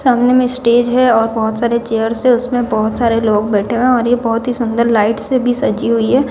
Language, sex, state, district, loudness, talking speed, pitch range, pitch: Hindi, female, Odisha, Sambalpur, -14 LUFS, 245 wpm, 225-245 Hz, 235 Hz